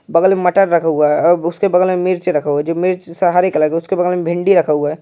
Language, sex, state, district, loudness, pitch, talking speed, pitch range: Hindi, male, Uttar Pradesh, Jyotiba Phule Nagar, -14 LUFS, 175 Hz, 325 wpm, 160-185 Hz